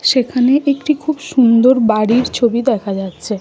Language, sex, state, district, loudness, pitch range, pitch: Bengali, female, West Bengal, Malda, -14 LUFS, 225-270 Hz, 250 Hz